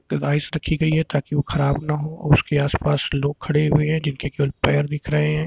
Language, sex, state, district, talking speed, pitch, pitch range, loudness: Hindi, male, Uttar Pradesh, Lucknow, 220 wpm, 150 Hz, 145-155 Hz, -21 LUFS